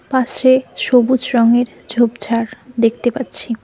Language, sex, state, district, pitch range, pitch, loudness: Bengali, female, West Bengal, Cooch Behar, 230-255 Hz, 240 Hz, -15 LUFS